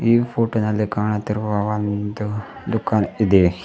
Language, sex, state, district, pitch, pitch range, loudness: Kannada, male, Karnataka, Bidar, 105 Hz, 105-110 Hz, -21 LUFS